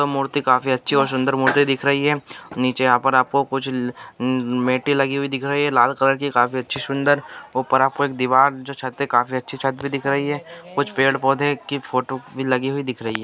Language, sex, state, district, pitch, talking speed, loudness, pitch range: Hindi, male, Andhra Pradesh, Anantapur, 135 Hz, 205 wpm, -20 LUFS, 130-140 Hz